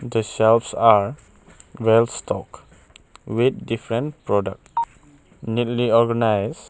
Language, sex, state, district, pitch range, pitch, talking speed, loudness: English, male, Arunachal Pradesh, Papum Pare, 110-125 Hz, 115 Hz, 90 wpm, -21 LUFS